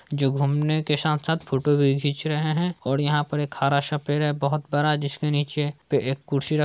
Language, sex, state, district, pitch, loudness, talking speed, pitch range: Hindi, male, Bihar, Saran, 145 Hz, -24 LUFS, 215 wpm, 140-150 Hz